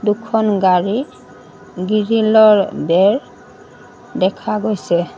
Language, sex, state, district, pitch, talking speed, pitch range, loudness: Assamese, female, Assam, Sonitpur, 210 Hz, 70 wpm, 190-220 Hz, -15 LUFS